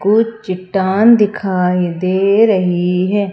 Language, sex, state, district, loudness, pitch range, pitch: Hindi, female, Madhya Pradesh, Umaria, -14 LUFS, 185-210 Hz, 190 Hz